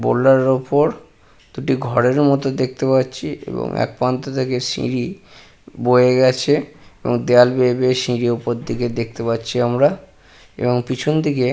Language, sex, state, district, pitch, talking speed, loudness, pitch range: Bengali, male, West Bengal, Purulia, 130 Hz, 135 wpm, -18 LUFS, 125-135 Hz